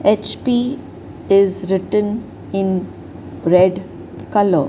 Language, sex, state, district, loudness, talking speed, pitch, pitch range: English, female, Maharashtra, Mumbai Suburban, -17 LUFS, 75 wpm, 195 Hz, 180-210 Hz